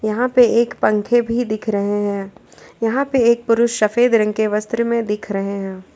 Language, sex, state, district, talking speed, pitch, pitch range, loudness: Hindi, female, Jharkhand, Ranchi, 200 wpm, 225 Hz, 210-235 Hz, -18 LUFS